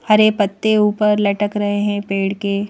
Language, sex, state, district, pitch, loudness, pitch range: Hindi, female, Madhya Pradesh, Bhopal, 205 Hz, -17 LUFS, 200-210 Hz